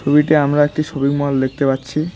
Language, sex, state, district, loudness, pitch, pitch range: Bengali, male, West Bengal, Cooch Behar, -16 LUFS, 145 Hz, 140-150 Hz